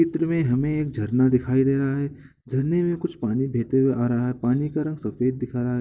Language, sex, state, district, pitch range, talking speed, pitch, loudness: Hindi, male, Bihar, Gopalganj, 125-150 Hz, 260 wpm, 130 Hz, -23 LUFS